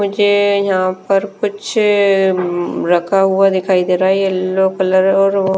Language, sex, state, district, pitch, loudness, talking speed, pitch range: Hindi, female, Bihar, West Champaran, 195 Hz, -14 LUFS, 160 wpm, 185-200 Hz